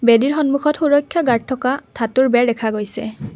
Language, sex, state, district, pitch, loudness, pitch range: Assamese, female, Assam, Kamrup Metropolitan, 255 Hz, -17 LUFS, 230-285 Hz